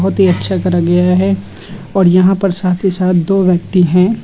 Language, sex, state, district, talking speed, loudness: Hindi, male, Uttar Pradesh, Lucknow, 210 wpm, -12 LUFS